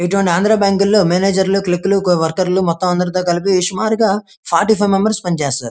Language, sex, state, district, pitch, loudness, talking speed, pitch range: Telugu, male, Andhra Pradesh, Krishna, 190 Hz, -15 LUFS, 180 wpm, 175-200 Hz